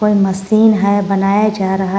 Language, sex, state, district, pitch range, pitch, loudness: Hindi, female, Jharkhand, Garhwa, 195-210 Hz, 200 Hz, -13 LUFS